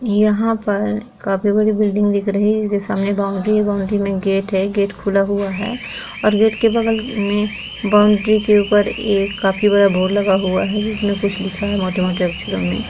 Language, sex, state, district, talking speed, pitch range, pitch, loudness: Hindi, female, Chhattisgarh, Korba, 205 wpm, 195-210 Hz, 205 Hz, -17 LUFS